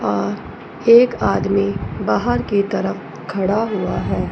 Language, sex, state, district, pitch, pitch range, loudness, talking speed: Hindi, female, Punjab, Fazilka, 200 Hz, 175-205 Hz, -18 LUFS, 125 wpm